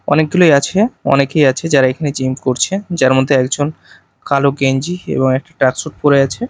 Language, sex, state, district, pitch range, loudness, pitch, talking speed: Bengali, male, Odisha, Malkangiri, 130-155 Hz, -14 LUFS, 140 Hz, 165 wpm